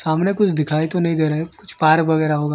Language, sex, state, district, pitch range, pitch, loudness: Hindi, male, Odisha, Malkangiri, 155-165 Hz, 160 Hz, -18 LUFS